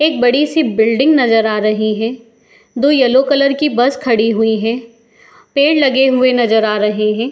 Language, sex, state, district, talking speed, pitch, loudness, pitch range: Hindi, female, Uttar Pradesh, Etah, 190 wpm, 240 Hz, -13 LUFS, 225-270 Hz